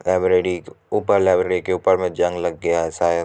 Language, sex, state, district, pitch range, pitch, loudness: Hindi, male, Bihar, Supaul, 85-90 Hz, 90 Hz, -20 LUFS